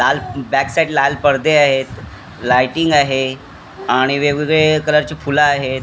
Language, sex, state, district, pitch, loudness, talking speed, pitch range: Marathi, male, Maharashtra, Mumbai Suburban, 140 Hz, -15 LUFS, 135 wpm, 130-150 Hz